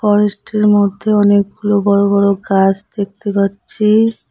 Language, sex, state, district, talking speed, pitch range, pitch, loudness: Bengali, female, West Bengal, Cooch Behar, 110 wpm, 200-210 Hz, 205 Hz, -14 LUFS